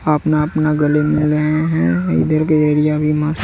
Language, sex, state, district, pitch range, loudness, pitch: Hindi, male, Bihar, West Champaran, 150-155 Hz, -15 LUFS, 150 Hz